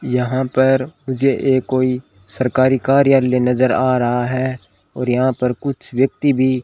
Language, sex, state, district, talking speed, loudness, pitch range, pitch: Hindi, male, Rajasthan, Bikaner, 165 wpm, -17 LUFS, 125-130 Hz, 130 Hz